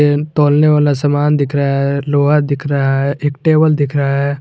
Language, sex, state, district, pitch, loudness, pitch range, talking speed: Hindi, male, Jharkhand, Garhwa, 145 Hz, -14 LUFS, 140-150 Hz, 205 wpm